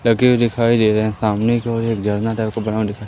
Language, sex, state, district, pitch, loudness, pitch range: Hindi, male, Madhya Pradesh, Umaria, 110 Hz, -18 LUFS, 110-115 Hz